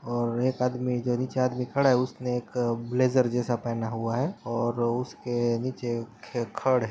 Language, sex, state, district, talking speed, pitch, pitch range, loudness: Hindi, male, Maharashtra, Pune, 175 wpm, 125 Hz, 120-125 Hz, -28 LUFS